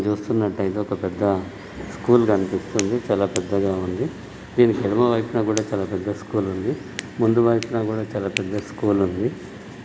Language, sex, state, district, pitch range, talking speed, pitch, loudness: Telugu, male, Telangana, Nalgonda, 95-110 Hz, 145 wpm, 105 Hz, -22 LUFS